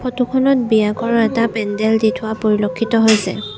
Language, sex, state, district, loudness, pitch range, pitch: Assamese, female, Assam, Sonitpur, -16 LUFS, 215-235 Hz, 225 Hz